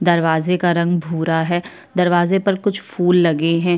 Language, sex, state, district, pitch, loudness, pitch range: Hindi, female, Chhattisgarh, Kabirdham, 175 Hz, -17 LUFS, 165-180 Hz